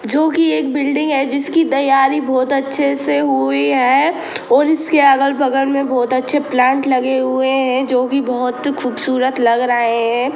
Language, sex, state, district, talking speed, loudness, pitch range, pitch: Hindi, female, Bihar, Gopalganj, 155 wpm, -15 LUFS, 250-280 Hz, 270 Hz